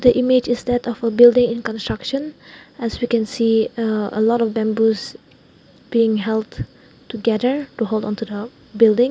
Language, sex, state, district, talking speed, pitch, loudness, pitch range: English, female, Nagaland, Dimapur, 180 wpm, 230 Hz, -19 LUFS, 220-245 Hz